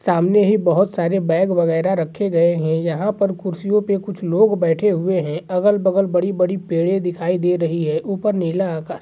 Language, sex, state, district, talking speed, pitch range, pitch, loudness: Hindi, male, Bihar, Gaya, 195 wpm, 170-195 Hz, 180 Hz, -18 LUFS